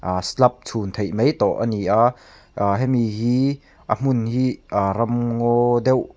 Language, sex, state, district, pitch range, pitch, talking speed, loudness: Mizo, male, Mizoram, Aizawl, 105-125 Hz, 120 Hz, 165 wpm, -20 LUFS